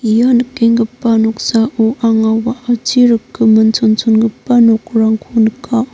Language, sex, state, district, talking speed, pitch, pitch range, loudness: Garo, female, Meghalaya, North Garo Hills, 90 wpm, 225 Hz, 220-240 Hz, -12 LUFS